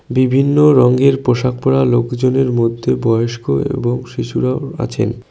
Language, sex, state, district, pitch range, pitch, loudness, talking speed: Bengali, male, West Bengal, Cooch Behar, 120-135 Hz, 125 Hz, -15 LUFS, 115 wpm